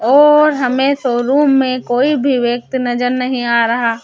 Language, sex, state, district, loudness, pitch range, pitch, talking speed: Hindi, female, Chhattisgarh, Raipur, -14 LUFS, 240-275 Hz, 255 Hz, 165 wpm